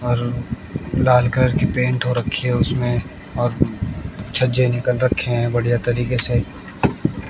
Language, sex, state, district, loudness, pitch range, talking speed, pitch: Hindi, male, Haryana, Jhajjar, -19 LUFS, 120-125 Hz, 140 wpm, 120 Hz